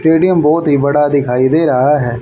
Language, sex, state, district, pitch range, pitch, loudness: Hindi, male, Haryana, Rohtak, 140-160 Hz, 145 Hz, -12 LUFS